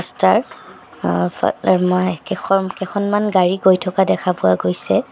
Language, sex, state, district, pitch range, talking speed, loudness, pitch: Assamese, male, Assam, Sonitpur, 165-190 Hz, 140 wpm, -17 LUFS, 185 Hz